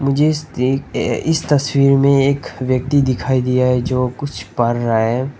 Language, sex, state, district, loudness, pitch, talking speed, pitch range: Hindi, male, Nagaland, Dimapur, -17 LUFS, 130 Hz, 165 wpm, 125-140 Hz